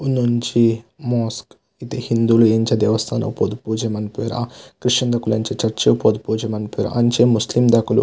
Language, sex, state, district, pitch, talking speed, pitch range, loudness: Tulu, male, Karnataka, Dakshina Kannada, 115 Hz, 140 wpm, 110-120 Hz, -18 LUFS